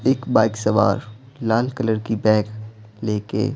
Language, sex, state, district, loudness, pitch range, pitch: Hindi, male, Bihar, Patna, -21 LUFS, 110-120 Hz, 110 Hz